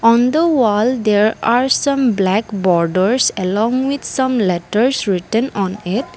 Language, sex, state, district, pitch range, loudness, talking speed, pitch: English, female, Assam, Kamrup Metropolitan, 195-255 Hz, -16 LUFS, 145 wpm, 225 Hz